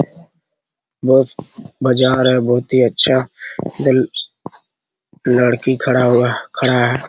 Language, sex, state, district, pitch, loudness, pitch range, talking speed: Hindi, male, Bihar, Araria, 130 Hz, -15 LUFS, 125-130 Hz, 125 wpm